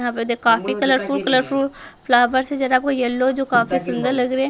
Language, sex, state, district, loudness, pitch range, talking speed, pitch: Hindi, male, Bihar, West Champaran, -19 LUFS, 245-270 Hz, 225 wpm, 255 Hz